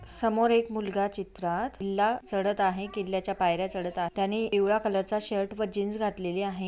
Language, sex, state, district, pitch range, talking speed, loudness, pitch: Marathi, female, Maharashtra, Aurangabad, 190-215 Hz, 160 wpm, -29 LUFS, 200 Hz